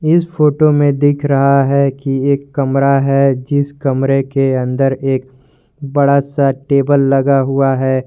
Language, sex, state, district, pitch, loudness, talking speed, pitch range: Hindi, male, Jharkhand, Garhwa, 140 Hz, -13 LUFS, 155 wpm, 135-140 Hz